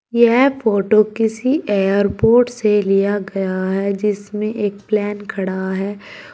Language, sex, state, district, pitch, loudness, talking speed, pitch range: Hindi, female, Uttar Pradesh, Shamli, 205 Hz, -17 LUFS, 125 wpm, 195-220 Hz